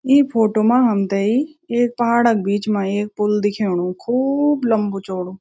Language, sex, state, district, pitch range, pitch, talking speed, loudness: Garhwali, female, Uttarakhand, Tehri Garhwal, 200-245 Hz, 215 Hz, 165 wpm, -18 LUFS